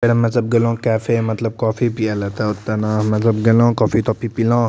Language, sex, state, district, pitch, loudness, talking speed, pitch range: Maithili, male, Bihar, Madhepura, 115 Hz, -18 LUFS, 205 wpm, 110-115 Hz